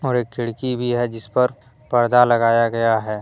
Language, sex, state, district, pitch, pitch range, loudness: Hindi, male, Jharkhand, Deoghar, 120 Hz, 115-125 Hz, -19 LUFS